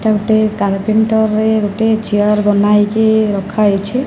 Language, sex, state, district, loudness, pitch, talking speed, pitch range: Odia, female, Odisha, Sambalpur, -13 LUFS, 215 Hz, 105 wpm, 205-220 Hz